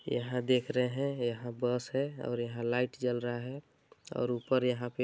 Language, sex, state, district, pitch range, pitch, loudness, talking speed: Hindi, male, Chhattisgarh, Bilaspur, 120-130 Hz, 125 Hz, -33 LUFS, 205 wpm